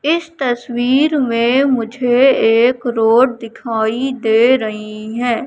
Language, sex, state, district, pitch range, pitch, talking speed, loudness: Hindi, female, Madhya Pradesh, Katni, 225-260 Hz, 240 Hz, 110 wpm, -15 LUFS